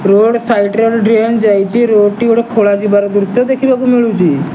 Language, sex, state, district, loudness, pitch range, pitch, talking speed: Odia, male, Odisha, Nuapada, -11 LUFS, 205-235 Hz, 220 Hz, 160 wpm